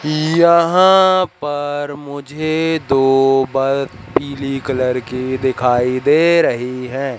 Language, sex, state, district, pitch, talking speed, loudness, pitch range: Hindi, male, Madhya Pradesh, Katni, 140 Hz, 100 wpm, -15 LUFS, 130-155 Hz